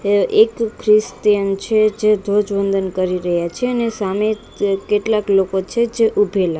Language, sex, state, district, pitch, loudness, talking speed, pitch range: Gujarati, female, Gujarat, Gandhinagar, 205 Hz, -17 LUFS, 155 wpm, 195-215 Hz